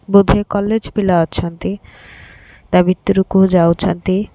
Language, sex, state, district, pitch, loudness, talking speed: Odia, female, Odisha, Khordha, 185 Hz, -15 LUFS, 110 wpm